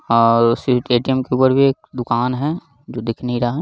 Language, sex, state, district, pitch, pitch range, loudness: Hindi, male, Bihar, Lakhisarai, 125 Hz, 120-130 Hz, -17 LUFS